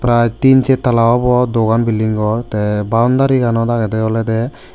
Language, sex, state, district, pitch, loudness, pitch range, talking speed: Chakma, male, Tripura, West Tripura, 115 Hz, -14 LUFS, 110-125 Hz, 165 wpm